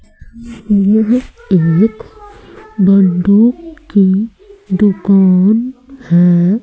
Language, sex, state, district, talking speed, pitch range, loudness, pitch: Hindi, female, Madhya Pradesh, Umaria, 55 wpm, 190-245 Hz, -11 LUFS, 210 Hz